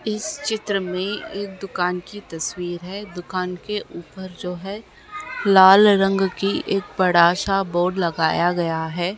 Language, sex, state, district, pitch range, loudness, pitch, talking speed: Hindi, female, Uttar Pradesh, Gorakhpur, 175-200 Hz, -20 LUFS, 190 Hz, 150 wpm